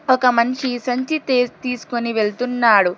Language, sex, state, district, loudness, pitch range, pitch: Telugu, female, Telangana, Hyderabad, -19 LUFS, 235-255 Hz, 245 Hz